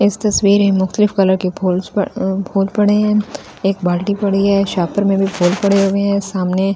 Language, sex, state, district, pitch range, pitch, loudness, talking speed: Hindi, female, Delhi, New Delhi, 190-200 Hz, 195 Hz, -15 LUFS, 220 wpm